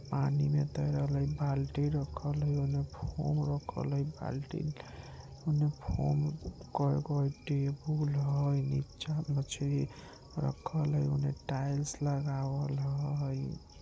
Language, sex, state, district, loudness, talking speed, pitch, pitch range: Maithili, male, Bihar, Muzaffarpur, -34 LUFS, 110 wpm, 140 Hz, 140-145 Hz